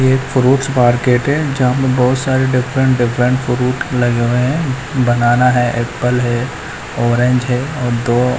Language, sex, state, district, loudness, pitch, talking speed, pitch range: Hindi, male, Chandigarh, Chandigarh, -14 LUFS, 125 Hz, 155 wpm, 120-130 Hz